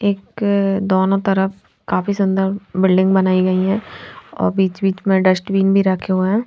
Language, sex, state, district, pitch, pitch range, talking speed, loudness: Hindi, female, Bihar, Patna, 195 Hz, 190-195 Hz, 165 wpm, -17 LUFS